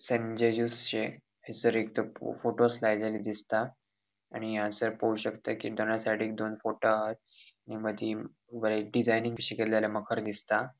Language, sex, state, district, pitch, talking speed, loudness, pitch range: Konkani, male, Goa, North and South Goa, 110 Hz, 140 wpm, -31 LUFS, 110-115 Hz